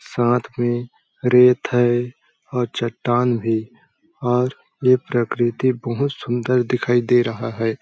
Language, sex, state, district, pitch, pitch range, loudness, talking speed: Hindi, male, Chhattisgarh, Balrampur, 120 Hz, 120-125 Hz, -20 LUFS, 140 wpm